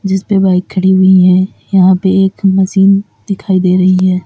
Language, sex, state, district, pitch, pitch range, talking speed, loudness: Hindi, female, Uttar Pradesh, Lalitpur, 190 Hz, 185-195 Hz, 185 wpm, -10 LUFS